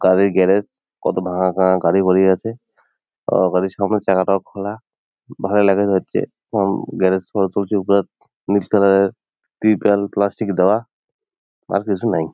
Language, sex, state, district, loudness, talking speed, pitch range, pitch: Bengali, male, West Bengal, Jalpaiguri, -18 LUFS, 115 wpm, 95-105 Hz, 100 Hz